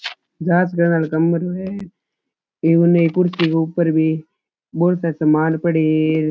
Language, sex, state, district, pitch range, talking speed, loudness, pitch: Rajasthani, male, Rajasthan, Churu, 160-175 Hz, 140 wpm, -17 LUFS, 165 Hz